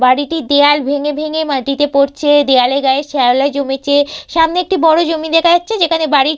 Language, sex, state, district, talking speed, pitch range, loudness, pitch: Bengali, female, West Bengal, Purulia, 190 wpm, 275-320 Hz, -13 LUFS, 290 Hz